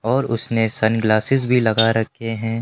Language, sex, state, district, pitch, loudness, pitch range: Hindi, male, Rajasthan, Jaipur, 115 Hz, -18 LUFS, 110-120 Hz